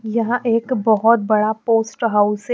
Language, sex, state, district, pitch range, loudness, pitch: Hindi, female, Chandigarh, Chandigarh, 215-230 Hz, -17 LUFS, 225 Hz